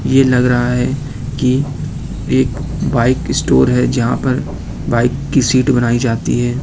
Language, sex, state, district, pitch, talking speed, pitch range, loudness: Hindi, male, Uttar Pradesh, Lucknow, 125 Hz, 155 wpm, 120-135 Hz, -15 LUFS